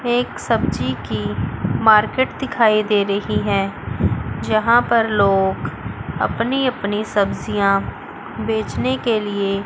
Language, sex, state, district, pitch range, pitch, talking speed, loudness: Hindi, female, Chandigarh, Chandigarh, 200-235 Hz, 215 Hz, 105 wpm, -19 LUFS